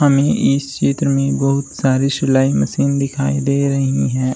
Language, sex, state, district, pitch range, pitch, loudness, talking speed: Hindi, male, Uttar Pradesh, Shamli, 130-140 Hz, 135 Hz, -16 LUFS, 165 wpm